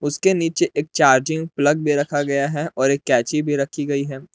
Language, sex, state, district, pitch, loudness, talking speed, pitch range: Hindi, male, Jharkhand, Palamu, 145 Hz, -19 LUFS, 220 wpm, 140-155 Hz